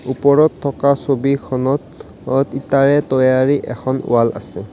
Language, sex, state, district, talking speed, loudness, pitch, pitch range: Assamese, male, Assam, Kamrup Metropolitan, 115 wpm, -16 LUFS, 135 Hz, 130-140 Hz